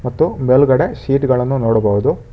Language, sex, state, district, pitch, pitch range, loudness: Kannada, male, Karnataka, Bangalore, 125 Hz, 115-135 Hz, -15 LUFS